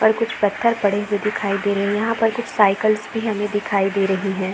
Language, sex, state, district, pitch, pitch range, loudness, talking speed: Hindi, female, Jharkhand, Jamtara, 205 Hz, 200-220 Hz, -20 LUFS, 250 wpm